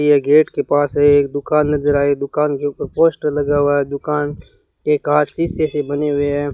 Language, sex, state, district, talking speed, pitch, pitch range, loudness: Hindi, male, Rajasthan, Bikaner, 220 wpm, 145 Hz, 145-150 Hz, -17 LUFS